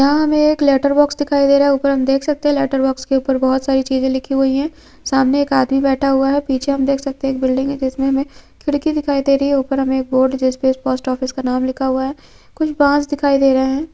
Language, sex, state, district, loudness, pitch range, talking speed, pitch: Hindi, female, Chhattisgarh, Korba, -16 LUFS, 265-285 Hz, 260 wpm, 275 Hz